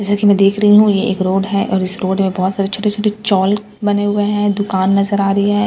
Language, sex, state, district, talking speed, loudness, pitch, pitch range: Hindi, female, Bihar, Katihar, 295 wpm, -15 LUFS, 200 Hz, 195-205 Hz